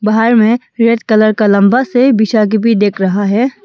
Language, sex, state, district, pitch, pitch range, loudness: Hindi, female, Arunachal Pradesh, Longding, 220 Hz, 210-235 Hz, -11 LUFS